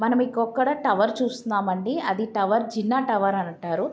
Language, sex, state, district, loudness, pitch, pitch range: Telugu, female, Andhra Pradesh, Guntur, -24 LUFS, 225 Hz, 200-245 Hz